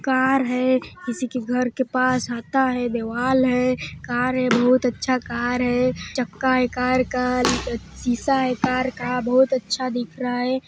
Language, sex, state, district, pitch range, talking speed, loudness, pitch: Hindi, female, Chhattisgarh, Sarguja, 245-255 Hz, 170 wpm, -22 LUFS, 250 Hz